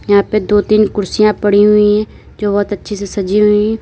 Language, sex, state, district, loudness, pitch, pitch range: Hindi, female, Uttar Pradesh, Lalitpur, -13 LUFS, 210 Hz, 205-210 Hz